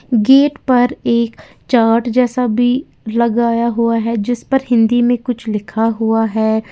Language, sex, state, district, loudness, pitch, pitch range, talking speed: Hindi, female, Uttar Pradesh, Lalitpur, -15 LUFS, 235 Hz, 225-245 Hz, 150 wpm